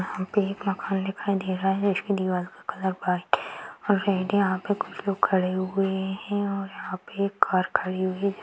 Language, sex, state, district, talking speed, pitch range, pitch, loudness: Hindi, female, Bihar, Madhepura, 220 wpm, 185-200 Hz, 195 Hz, -26 LUFS